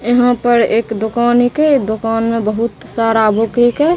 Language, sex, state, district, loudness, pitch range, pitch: Maithili, female, Bihar, Begusarai, -14 LUFS, 225-245 Hz, 230 Hz